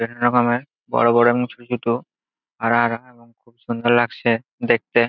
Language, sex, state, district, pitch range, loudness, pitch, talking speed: Bengali, male, West Bengal, Jalpaiguri, 115-120 Hz, -20 LUFS, 120 Hz, 165 wpm